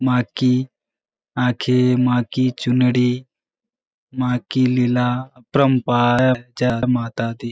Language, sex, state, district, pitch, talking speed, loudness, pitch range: Hindi, male, Bihar, Kishanganj, 125 Hz, 110 wpm, -19 LUFS, 125-130 Hz